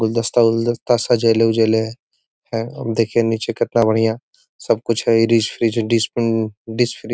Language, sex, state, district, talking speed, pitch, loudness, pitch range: Hindi, male, Bihar, Gaya, 110 wpm, 115 Hz, -18 LUFS, 115-120 Hz